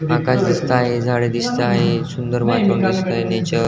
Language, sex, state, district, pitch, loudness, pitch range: Marathi, male, Maharashtra, Dhule, 125 Hz, -18 LUFS, 120-160 Hz